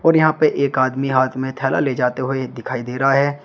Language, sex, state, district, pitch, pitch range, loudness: Hindi, male, Uttar Pradesh, Shamli, 135 Hz, 130-140 Hz, -19 LUFS